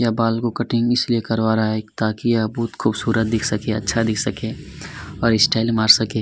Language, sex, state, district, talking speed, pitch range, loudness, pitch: Hindi, male, Chhattisgarh, Kabirdham, 230 wpm, 110-115 Hz, -19 LUFS, 110 Hz